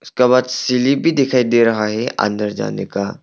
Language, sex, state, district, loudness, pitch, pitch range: Hindi, male, Arunachal Pradesh, Longding, -16 LUFS, 125 Hz, 110-130 Hz